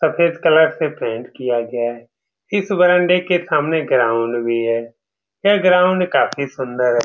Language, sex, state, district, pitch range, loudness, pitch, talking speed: Hindi, male, Bihar, Saran, 115-175 Hz, -17 LUFS, 140 Hz, 160 wpm